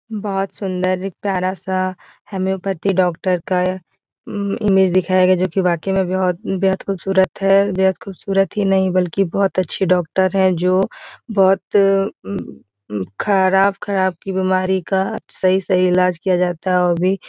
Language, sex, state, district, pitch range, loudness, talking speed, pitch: Hindi, female, Bihar, Jahanabad, 185-195 Hz, -18 LUFS, 155 wpm, 190 Hz